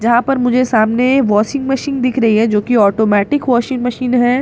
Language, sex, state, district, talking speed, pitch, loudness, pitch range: Hindi, female, Bihar, Katihar, 230 wpm, 245 Hz, -14 LUFS, 220-260 Hz